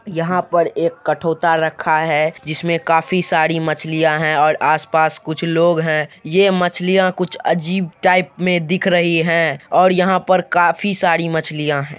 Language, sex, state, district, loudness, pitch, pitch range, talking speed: Hindi, male, Bihar, Supaul, -16 LUFS, 165 Hz, 160-180 Hz, 160 wpm